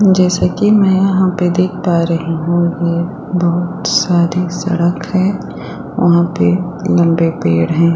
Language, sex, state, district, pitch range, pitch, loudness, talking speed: Hindi, female, Chhattisgarh, Sukma, 170-185 Hz, 175 Hz, -14 LUFS, 145 wpm